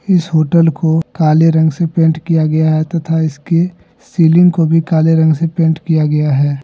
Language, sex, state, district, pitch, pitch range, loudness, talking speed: Hindi, male, Jharkhand, Deoghar, 160 Hz, 155-165 Hz, -12 LUFS, 200 wpm